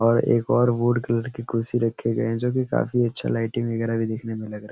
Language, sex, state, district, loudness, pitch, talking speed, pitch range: Hindi, male, Uttar Pradesh, Etah, -23 LUFS, 115 Hz, 280 wpm, 115-120 Hz